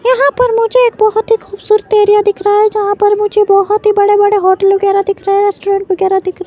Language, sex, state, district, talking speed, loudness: Hindi, female, Himachal Pradesh, Shimla, 240 wpm, -11 LUFS